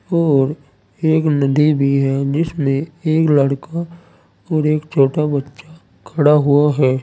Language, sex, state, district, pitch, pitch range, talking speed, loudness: Hindi, male, Uttar Pradesh, Saharanpur, 150 Hz, 140-160 Hz, 130 wpm, -16 LUFS